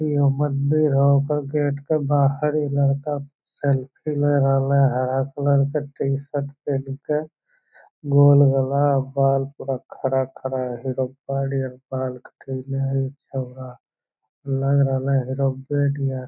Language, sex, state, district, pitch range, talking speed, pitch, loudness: Hindi, male, Bihar, Lakhisarai, 135-145 Hz, 135 wpm, 140 Hz, -22 LUFS